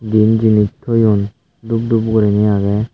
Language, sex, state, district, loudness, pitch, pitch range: Chakma, male, Tripura, Dhalai, -14 LUFS, 110 Hz, 105-115 Hz